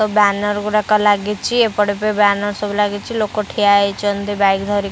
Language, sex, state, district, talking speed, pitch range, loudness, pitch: Odia, female, Odisha, Khordha, 170 wpm, 205-210 Hz, -16 LUFS, 205 Hz